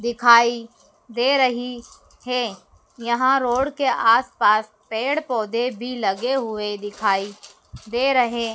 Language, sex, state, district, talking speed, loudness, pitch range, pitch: Hindi, female, Madhya Pradesh, Dhar, 110 wpm, -20 LUFS, 215-250 Hz, 235 Hz